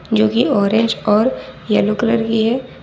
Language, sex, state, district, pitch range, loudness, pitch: Hindi, female, Jharkhand, Ranchi, 215-230 Hz, -16 LUFS, 225 Hz